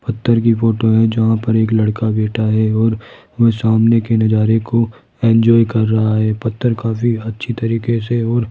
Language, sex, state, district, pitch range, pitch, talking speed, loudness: Hindi, male, Rajasthan, Jaipur, 110-115 Hz, 115 Hz, 190 wpm, -15 LUFS